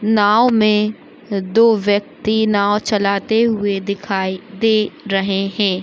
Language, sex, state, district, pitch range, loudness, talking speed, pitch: Hindi, female, Uttar Pradesh, Muzaffarnagar, 200-220 Hz, -17 LUFS, 125 wpm, 205 Hz